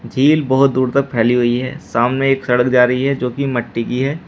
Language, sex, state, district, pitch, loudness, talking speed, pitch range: Hindi, male, Uttar Pradesh, Shamli, 130 Hz, -16 LUFS, 225 wpm, 125-140 Hz